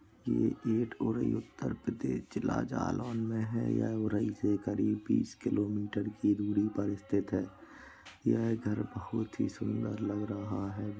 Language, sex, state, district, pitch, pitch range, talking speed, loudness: Hindi, male, Uttar Pradesh, Jalaun, 105 Hz, 100-110 Hz, 135 wpm, -34 LUFS